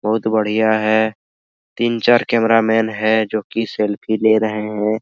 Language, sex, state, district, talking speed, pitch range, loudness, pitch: Hindi, male, Bihar, Araria, 165 wpm, 105-110 Hz, -17 LUFS, 110 Hz